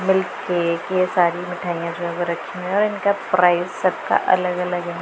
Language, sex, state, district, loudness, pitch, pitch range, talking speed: Hindi, female, Punjab, Pathankot, -21 LUFS, 180 Hz, 175-185 Hz, 190 wpm